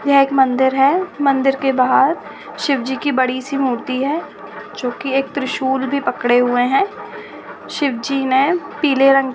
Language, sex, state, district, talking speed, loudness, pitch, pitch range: Hindi, female, Uttar Pradesh, Budaun, 160 wpm, -17 LUFS, 270 Hz, 260-285 Hz